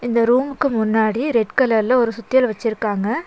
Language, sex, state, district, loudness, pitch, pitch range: Tamil, female, Tamil Nadu, Nilgiris, -18 LUFS, 230 Hz, 220-255 Hz